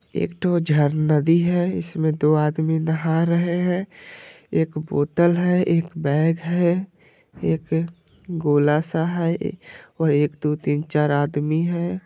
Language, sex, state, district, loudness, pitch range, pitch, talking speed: Hindi, male, Bihar, Vaishali, -21 LUFS, 150-175 Hz, 165 Hz, 140 wpm